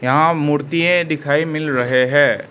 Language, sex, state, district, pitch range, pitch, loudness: Hindi, male, Arunachal Pradesh, Lower Dibang Valley, 140-165 Hz, 150 Hz, -16 LUFS